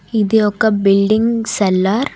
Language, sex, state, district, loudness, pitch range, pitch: Telugu, female, Telangana, Hyderabad, -14 LUFS, 200-220 Hz, 215 Hz